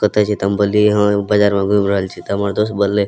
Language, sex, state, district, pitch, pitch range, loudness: Maithili, male, Bihar, Madhepura, 100 Hz, 100-105 Hz, -16 LUFS